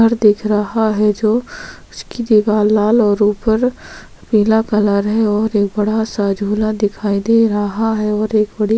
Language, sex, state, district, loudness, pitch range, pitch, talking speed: Hindi, female, Chhattisgarh, Korba, -15 LUFS, 210-220 Hz, 215 Hz, 175 wpm